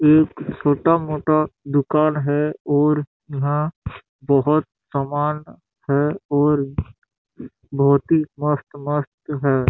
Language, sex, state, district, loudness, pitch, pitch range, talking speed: Hindi, male, Chhattisgarh, Bastar, -20 LUFS, 145 Hz, 140-150 Hz, 95 wpm